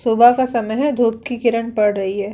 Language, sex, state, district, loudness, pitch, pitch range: Hindi, female, Uttar Pradesh, Hamirpur, -17 LUFS, 230 Hz, 215-240 Hz